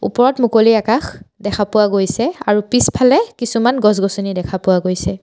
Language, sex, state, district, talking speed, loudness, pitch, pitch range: Assamese, female, Assam, Sonitpur, 150 wpm, -15 LUFS, 210 Hz, 195-240 Hz